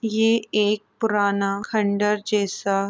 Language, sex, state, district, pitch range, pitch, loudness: Hindi, female, Uttar Pradesh, Etah, 200-215 Hz, 210 Hz, -22 LUFS